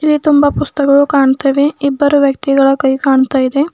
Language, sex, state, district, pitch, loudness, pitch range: Kannada, female, Karnataka, Bidar, 280 Hz, -12 LUFS, 270-290 Hz